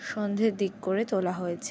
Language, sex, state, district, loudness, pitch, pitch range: Bengali, female, West Bengal, Jhargram, -29 LUFS, 200 Hz, 185-210 Hz